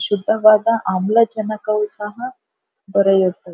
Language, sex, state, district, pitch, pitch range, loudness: Kannada, female, Karnataka, Dharwad, 210 Hz, 195-220 Hz, -17 LUFS